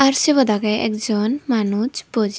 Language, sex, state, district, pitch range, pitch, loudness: Chakma, female, Tripura, Dhalai, 215-265 Hz, 220 Hz, -19 LUFS